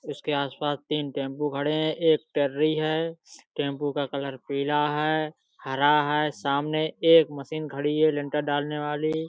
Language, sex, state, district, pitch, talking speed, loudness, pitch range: Hindi, male, Uttar Pradesh, Budaun, 150 Hz, 150 wpm, -26 LUFS, 145-155 Hz